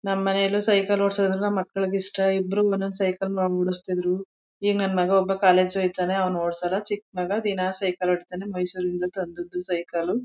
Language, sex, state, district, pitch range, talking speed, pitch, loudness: Kannada, female, Karnataka, Mysore, 180-195 Hz, 175 wpm, 190 Hz, -24 LUFS